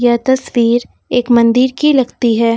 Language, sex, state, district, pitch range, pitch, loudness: Hindi, female, Uttar Pradesh, Lucknow, 235-255 Hz, 245 Hz, -13 LUFS